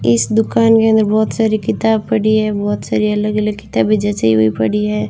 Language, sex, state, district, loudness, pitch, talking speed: Hindi, female, Rajasthan, Bikaner, -15 LUFS, 210 Hz, 210 wpm